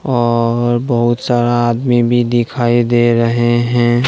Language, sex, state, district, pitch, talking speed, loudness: Hindi, male, Jharkhand, Deoghar, 120 Hz, 130 wpm, -14 LUFS